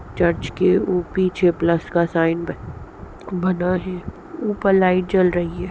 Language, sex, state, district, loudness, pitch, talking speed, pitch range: Hindi, female, Bihar, East Champaran, -20 LUFS, 180 Hz, 145 wpm, 170-185 Hz